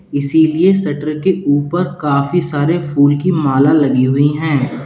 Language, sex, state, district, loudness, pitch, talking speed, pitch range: Hindi, male, Uttar Pradesh, Lalitpur, -14 LUFS, 150 Hz, 150 wpm, 140-165 Hz